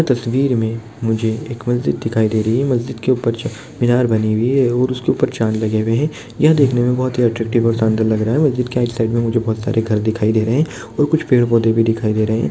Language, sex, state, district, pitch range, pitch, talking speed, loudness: Hindi, male, Bihar, Lakhisarai, 110-125 Hz, 115 Hz, 270 wpm, -17 LUFS